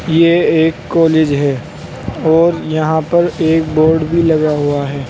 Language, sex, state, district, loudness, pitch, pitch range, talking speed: Hindi, male, Uttar Pradesh, Saharanpur, -13 LUFS, 160 Hz, 150-165 Hz, 155 wpm